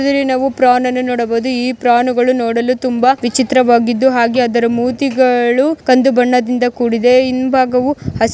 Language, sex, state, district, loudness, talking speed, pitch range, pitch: Kannada, female, Karnataka, Mysore, -13 LUFS, 145 wpm, 240-260 Hz, 250 Hz